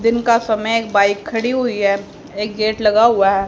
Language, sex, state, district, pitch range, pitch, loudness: Hindi, female, Haryana, Rohtak, 200-230 Hz, 215 Hz, -16 LUFS